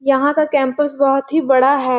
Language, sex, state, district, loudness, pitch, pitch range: Hindi, female, Chhattisgarh, Sarguja, -15 LUFS, 280 Hz, 270-290 Hz